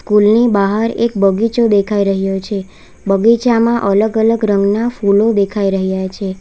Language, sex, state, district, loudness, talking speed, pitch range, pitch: Gujarati, female, Gujarat, Valsad, -14 LUFS, 150 wpm, 195-225 Hz, 205 Hz